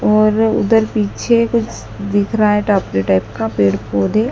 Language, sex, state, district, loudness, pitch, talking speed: Hindi, female, Madhya Pradesh, Dhar, -15 LUFS, 210 Hz, 155 wpm